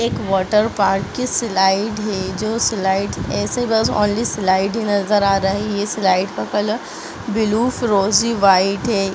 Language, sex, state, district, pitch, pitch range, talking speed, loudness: Hindi, female, Bihar, Gopalganj, 205 Hz, 195-220 Hz, 155 wpm, -18 LUFS